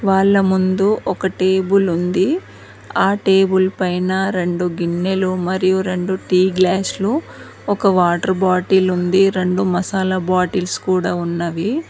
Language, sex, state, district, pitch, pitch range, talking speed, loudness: Telugu, female, Telangana, Mahabubabad, 185 Hz, 180-190 Hz, 115 wpm, -17 LUFS